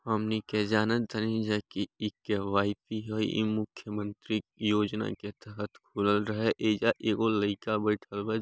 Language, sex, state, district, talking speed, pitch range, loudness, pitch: Bhojpuri, male, Bihar, Gopalganj, 170 wpm, 105-110 Hz, -31 LUFS, 105 Hz